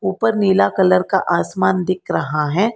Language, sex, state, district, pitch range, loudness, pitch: Hindi, female, Karnataka, Bangalore, 140-190 Hz, -17 LUFS, 185 Hz